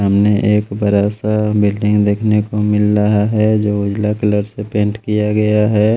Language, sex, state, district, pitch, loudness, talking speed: Hindi, male, Bihar, Patna, 105 Hz, -15 LUFS, 180 wpm